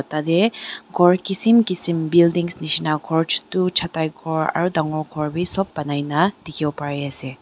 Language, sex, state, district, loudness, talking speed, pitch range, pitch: Nagamese, female, Nagaland, Dimapur, -20 LUFS, 145 wpm, 155-180 Hz, 165 Hz